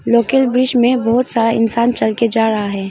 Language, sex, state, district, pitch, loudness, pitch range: Hindi, female, Arunachal Pradesh, Longding, 235 Hz, -14 LUFS, 225-245 Hz